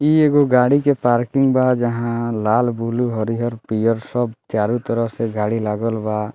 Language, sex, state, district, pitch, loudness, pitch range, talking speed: Bhojpuri, male, Bihar, Muzaffarpur, 115 Hz, -19 LUFS, 110-125 Hz, 170 wpm